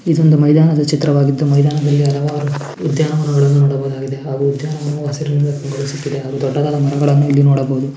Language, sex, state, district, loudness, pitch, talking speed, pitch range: Kannada, male, Karnataka, Mysore, -15 LUFS, 145 Hz, 120 wpm, 140-150 Hz